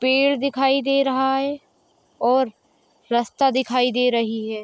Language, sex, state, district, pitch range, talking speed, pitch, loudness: Hindi, female, Jharkhand, Sahebganj, 240-275 Hz, 140 wpm, 260 Hz, -20 LUFS